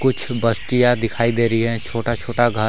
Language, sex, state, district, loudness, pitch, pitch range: Hindi, male, Jharkhand, Garhwa, -19 LUFS, 115 Hz, 115-120 Hz